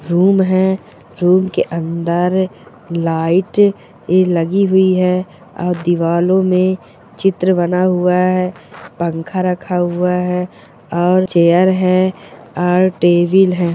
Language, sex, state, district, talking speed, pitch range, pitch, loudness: Hindi, female, Chhattisgarh, Bilaspur, 115 wpm, 175-185 Hz, 180 Hz, -15 LUFS